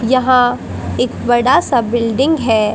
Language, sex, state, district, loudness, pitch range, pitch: Hindi, female, Haryana, Charkhi Dadri, -14 LUFS, 235-260 Hz, 245 Hz